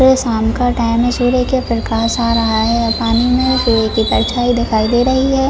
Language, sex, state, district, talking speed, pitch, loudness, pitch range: Hindi, female, Jharkhand, Jamtara, 230 wpm, 235 Hz, -14 LUFS, 230-250 Hz